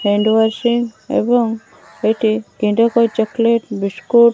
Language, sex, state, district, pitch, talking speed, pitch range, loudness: Odia, female, Odisha, Malkangiri, 225 Hz, 95 wpm, 220-235 Hz, -16 LUFS